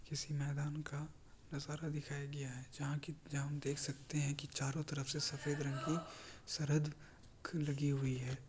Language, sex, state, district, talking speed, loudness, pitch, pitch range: Hindi, male, Bihar, Kishanganj, 185 wpm, -41 LUFS, 145 Hz, 140-150 Hz